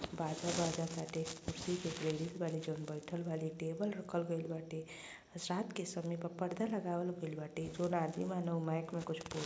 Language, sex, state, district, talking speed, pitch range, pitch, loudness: Bhojpuri, female, Uttar Pradesh, Gorakhpur, 205 wpm, 160-175 Hz, 165 Hz, -40 LUFS